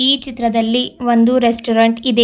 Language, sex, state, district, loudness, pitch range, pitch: Kannada, female, Karnataka, Bidar, -15 LUFS, 230-250 Hz, 235 Hz